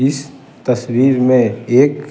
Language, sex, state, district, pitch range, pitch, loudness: Hindi, male, Bihar, Patna, 125-135 Hz, 130 Hz, -14 LUFS